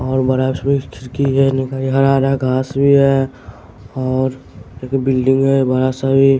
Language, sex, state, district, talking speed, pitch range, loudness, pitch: Hindi, male, Bihar, West Champaran, 140 wpm, 130-135 Hz, -16 LUFS, 130 Hz